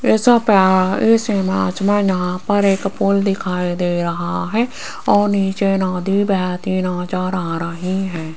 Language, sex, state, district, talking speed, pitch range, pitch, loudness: Hindi, female, Rajasthan, Jaipur, 150 wpm, 180-200 Hz, 190 Hz, -17 LUFS